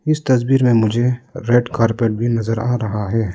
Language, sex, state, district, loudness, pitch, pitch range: Hindi, male, Arunachal Pradesh, Lower Dibang Valley, -17 LUFS, 120 Hz, 115-125 Hz